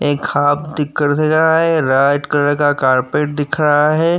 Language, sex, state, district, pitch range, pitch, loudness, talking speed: Hindi, male, Uttar Pradesh, Jyotiba Phule Nagar, 145-155 Hz, 145 Hz, -15 LUFS, 170 wpm